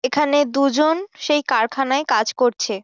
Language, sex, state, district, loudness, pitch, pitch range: Bengali, female, West Bengal, Jhargram, -19 LUFS, 275 Hz, 245-295 Hz